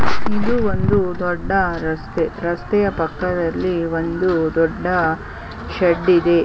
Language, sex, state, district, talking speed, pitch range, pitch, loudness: Kannada, female, Karnataka, Chamarajanagar, 95 wpm, 165-185 Hz, 170 Hz, -19 LUFS